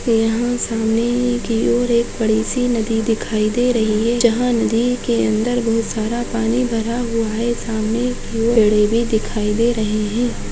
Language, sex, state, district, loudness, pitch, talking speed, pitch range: Chhattisgarhi, female, Chhattisgarh, Sarguja, -18 LUFS, 230 Hz, 155 wpm, 220-240 Hz